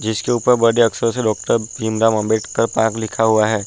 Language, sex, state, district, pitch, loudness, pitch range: Hindi, male, Uttar Pradesh, Budaun, 110 Hz, -17 LUFS, 110-115 Hz